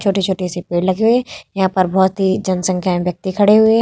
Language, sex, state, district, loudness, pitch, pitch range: Hindi, female, Bihar, Vaishali, -16 LUFS, 190 Hz, 185-205 Hz